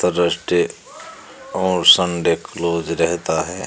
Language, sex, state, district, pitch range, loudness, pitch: Hindi, male, Uttar Pradesh, Shamli, 85-90 Hz, -17 LUFS, 85 Hz